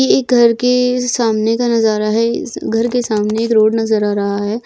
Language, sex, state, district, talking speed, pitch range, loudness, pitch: Hindi, female, Uttar Pradesh, Jyotiba Phule Nagar, 230 wpm, 215-240 Hz, -14 LUFS, 225 Hz